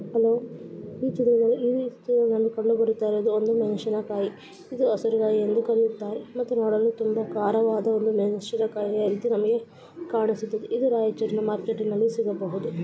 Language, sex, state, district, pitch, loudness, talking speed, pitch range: Kannada, male, Karnataka, Raichur, 220 Hz, -25 LUFS, 105 wpm, 210-230 Hz